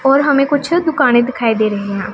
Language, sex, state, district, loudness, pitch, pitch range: Hindi, female, Punjab, Pathankot, -14 LUFS, 270 Hz, 225-290 Hz